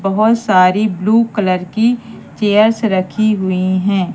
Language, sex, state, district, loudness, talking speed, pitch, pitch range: Hindi, female, Madhya Pradesh, Katni, -14 LUFS, 130 wpm, 205 Hz, 185-220 Hz